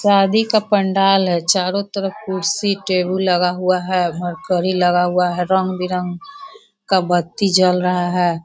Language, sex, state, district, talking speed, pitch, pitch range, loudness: Hindi, female, Bihar, Sitamarhi, 140 wpm, 185 Hz, 180-195 Hz, -17 LUFS